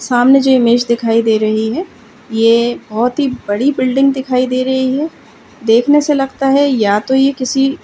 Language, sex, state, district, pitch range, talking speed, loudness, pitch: Hindi, female, Uttar Pradesh, Gorakhpur, 230-270 Hz, 190 wpm, -13 LUFS, 255 Hz